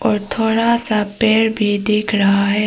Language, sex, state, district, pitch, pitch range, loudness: Hindi, female, Arunachal Pradesh, Papum Pare, 210 Hz, 205-225 Hz, -16 LUFS